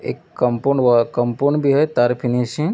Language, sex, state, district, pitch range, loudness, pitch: Hindi, male, Maharashtra, Nagpur, 120-140 Hz, -18 LUFS, 125 Hz